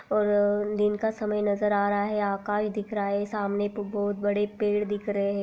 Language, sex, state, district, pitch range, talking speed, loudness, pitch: Hindi, female, Chhattisgarh, Raigarh, 205-210 Hz, 220 wpm, -27 LUFS, 205 Hz